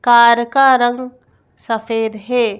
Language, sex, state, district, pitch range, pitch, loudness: Hindi, female, Madhya Pradesh, Bhopal, 225-250 Hz, 235 Hz, -14 LUFS